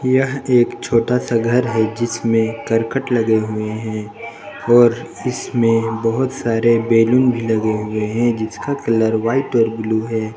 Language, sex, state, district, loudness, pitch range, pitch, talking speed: Hindi, male, Jharkhand, Palamu, -17 LUFS, 110-125 Hz, 115 Hz, 150 wpm